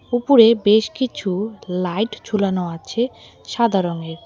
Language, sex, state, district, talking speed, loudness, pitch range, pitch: Bengali, female, West Bengal, Alipurduar, 115 wpm, -19 LUFS, 180-235 Hz, 210 Hz